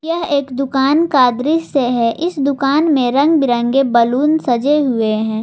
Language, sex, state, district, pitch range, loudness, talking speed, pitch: Hindi, female, Jharkhand, Garhwa, 245-300 Hz, -15 LUFS, 165 wpm, 275 Hz